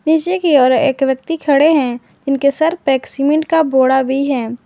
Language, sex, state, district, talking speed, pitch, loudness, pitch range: Hindi, female, Jharkhand, Garhwa, 195 wpm, 280 Hz, -14 LUFS, 265-315 Hz